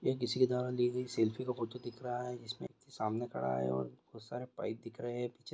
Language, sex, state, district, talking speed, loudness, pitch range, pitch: Maithili, male, Bihar, Supaul, 270 wpm, -37 LUFS, 115-125 Hz, 120 Hz